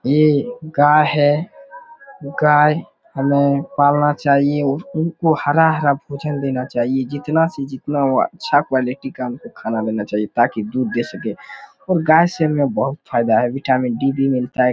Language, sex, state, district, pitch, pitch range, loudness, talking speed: Hindi, male, Uttar Pradesh, Muzaffarnagar, 140 Hz, 130-150 Hz, -18 LUFS, 165 wpm